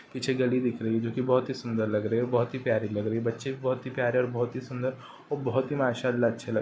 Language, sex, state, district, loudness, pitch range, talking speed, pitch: Hindi, male, Uttar Pradesh, Ghazipur, -29 LUFS, 115-130 Hz, 280 wpm, 125 Hz